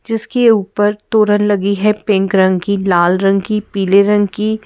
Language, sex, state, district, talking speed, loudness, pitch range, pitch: Hindi, female, Madhya Pradesh, Bhopal, 180 wpm, -13 LUFS, 195-215 Hz, 205 Hz